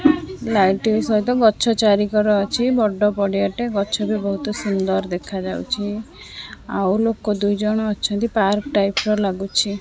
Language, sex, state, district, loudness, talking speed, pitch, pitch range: Odia, female, Odisha, Khordha, -20 LUFS, 130 wpm, 210 Hz, 200-220 Hz